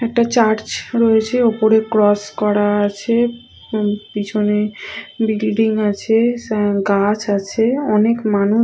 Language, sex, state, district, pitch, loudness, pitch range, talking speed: Bengali, female, West Bengal, Purulia, 215 Hz, -17 LUFS, 205-230 Hz, 90 wpm